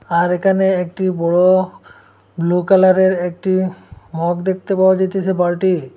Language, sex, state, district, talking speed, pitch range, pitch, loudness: Bengali, male, Assam, Hailakandi, 130 wpm, 175-190 Hz, 185 Hz, -16 LUFS